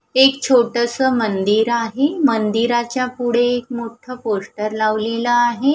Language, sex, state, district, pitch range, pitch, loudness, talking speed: Marathi, female, Maharashtra, Gondia, 225-255 Hz, 240 Hz, -18 LUFS, 115 wpm